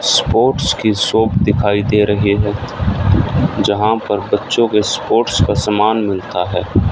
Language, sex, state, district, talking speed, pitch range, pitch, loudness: Hindi, male, Haryana, Rohtak, 140 wpm, 100-110 Hz, 105 Hz, -15 LUFS